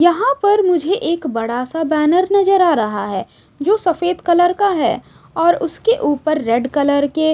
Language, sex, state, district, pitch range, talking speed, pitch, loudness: Hindi, female, Odisha, Sambalpur, 285-365 Hz, 180 wpm, 335 Hz, -16 LUFS